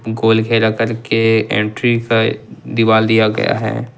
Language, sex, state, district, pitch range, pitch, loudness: Hindi, male, Jharkhand, Ranchi, 110-115 Hz, 115 Hz, -15 LUFS